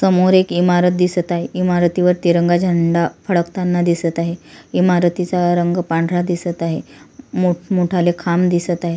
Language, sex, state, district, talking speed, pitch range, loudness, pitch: Marathi, female, Maharashtra, Solapur, 140 wpm, 170-180 Hz, -17 LUFS, 175 Hz